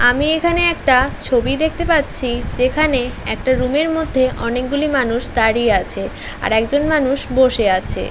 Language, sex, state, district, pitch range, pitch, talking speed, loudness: Bengali, female, West Bengal, North 24 Parganas, 245-300 Hz, 260 Hz, 140 wpm, -17 LUFS